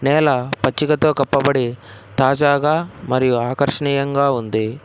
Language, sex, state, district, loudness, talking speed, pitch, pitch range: Telugu, male, Telangana, Hyderabad, -18 LUFS, 85 wpm, 135 Hz, 125-145 Hz